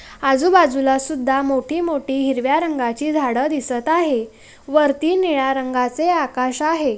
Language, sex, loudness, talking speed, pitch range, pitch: Marathi, female, -18 LUFS, 120 wpm, 260-310 Hz, 275 Hz